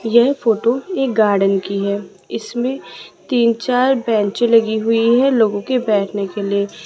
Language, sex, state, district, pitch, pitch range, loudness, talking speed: Hindi, female, Rajasthan, Jaipur, 225 Hz, 200-245 Hz, -17 LUFS, 155 wpm